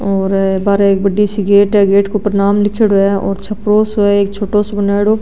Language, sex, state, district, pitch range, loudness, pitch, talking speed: Marwari, female, Rajasthan, Nagaur, 200-210 Hz, -13 LUFS, 200 Hz, 265 wpm